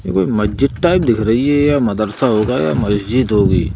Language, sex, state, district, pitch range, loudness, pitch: Hindi, male, Madhya Pradesh, Bhopal, 105-130 Hz, -15 LUFS, 110 Hz